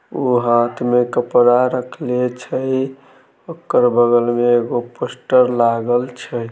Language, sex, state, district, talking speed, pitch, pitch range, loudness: Maithili, male, Bihar, Samastipur, 120 wpm, 120 Hz, 120-125 Hz, -17 LUFS